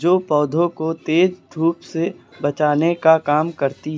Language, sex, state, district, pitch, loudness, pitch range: Hindi, male, Uttar Pradesh, Lucknow, 160 Hz, -19 LUFS, 150-170 Hz